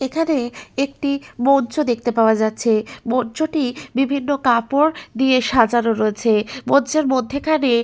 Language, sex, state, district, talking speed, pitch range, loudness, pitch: Bengali, female, West Bengal, Malda, 125 wpm, 235-280 Hz, -19 LUFS, 260 Hz